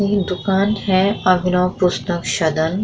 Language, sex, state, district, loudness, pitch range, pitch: Hindi, female, Bihar, Vaishali, -18 LUFS, 175-200 Hz, 185 Hz